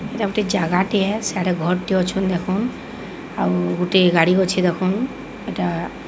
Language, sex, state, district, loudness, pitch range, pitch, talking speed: Odia, female, Odisha, Sambalpur, -20 LUFS, 180-205 Hz, 185 Hz, 150 wpm